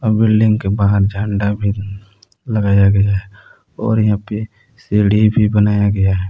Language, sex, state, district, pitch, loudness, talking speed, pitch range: Hindi, male, Jharkhand, Palamu, 105 Hz, -15 LUFS, 150 wpm, 100-105 Hz